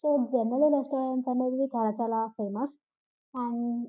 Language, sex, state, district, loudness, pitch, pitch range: Telugu, female, Telangana, Karimnagar, -29 LUFS, 255 Hz, 235-275 Hz